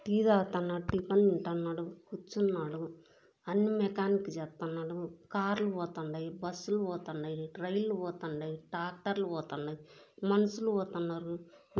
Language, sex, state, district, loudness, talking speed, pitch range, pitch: Telugu, female, Andhra Pradesh, Krishna, -34 LUFS, 105 wpm, 165-200 Hz, 175 Hz